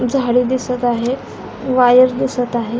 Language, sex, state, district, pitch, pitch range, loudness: Marathi, female, Maharashtra, Pune, 250 Hz, 245-255 Hz, -16 LUFS